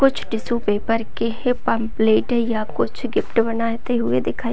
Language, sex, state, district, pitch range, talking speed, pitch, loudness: Hindi, female, Chhattisgarh, Raigarh, 220-235 Hz, 200 wpm, 230 Hz, -21 LUFS